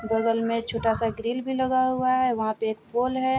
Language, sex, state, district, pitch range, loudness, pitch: Hindi, female, Bihar, Vaishali, 225-255 Hz, -25 LUFS, 230 Hz